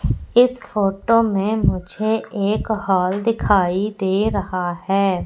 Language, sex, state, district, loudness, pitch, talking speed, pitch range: Hindi, female, Madhya Pradesh, Katni, -19 LUFS, 200 Hz, 115 wpm, 190-220 Hz